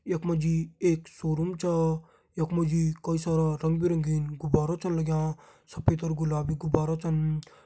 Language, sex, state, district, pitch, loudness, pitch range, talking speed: Garhwali, male, Uttarakhand, Tehri Garhwal, 160 Hz, -28 LUFS, 155-165 Hz, 165 wpm